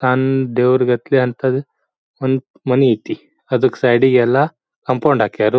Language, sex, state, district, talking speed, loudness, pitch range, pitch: Kannada, male, Karnataka, Bijapur, 120 wpm, -16 LUFS, 125-135 Hz, 130 Hz